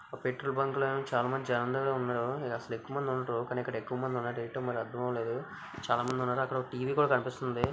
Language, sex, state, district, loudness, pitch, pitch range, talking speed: Telugu, male, Andhra Pradesh, Visakhapatnam, -33 LUFS, 125 Hz, 120-135 Hz, 235 wpm